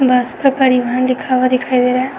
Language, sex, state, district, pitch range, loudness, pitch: Hindi, female, Uttar Pradesh, Etah, 250-260 Hz, -14 LUFS, 255 Hz